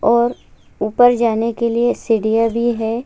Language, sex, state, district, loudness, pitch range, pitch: Hindi, female, Chhattisgarh, Kabirdham, -16 LUFS, 225-240 Hz, 235 Hz